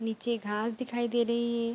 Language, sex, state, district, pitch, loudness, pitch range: Hindi, female, Bihar, Vaishali, 235 Hz, -31 LUFS, 225-235 Hz